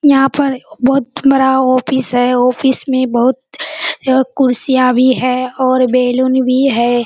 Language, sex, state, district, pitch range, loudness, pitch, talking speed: Hindi, female, Bihar, Kishanganj, 255-270 Hz, -13 LUFS, 260 Hz, 145 wpm